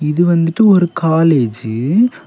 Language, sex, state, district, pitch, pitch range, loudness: Tamil, male, Tamil Nadu, Kanyakumari, 165 Hz, 150-185 Hz, -13 LUFS